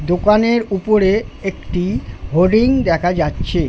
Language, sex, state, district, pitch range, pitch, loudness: Bengali, male, West Bengal, Jhargram, 175-215 Hz, 195 Hz, -16 LUFS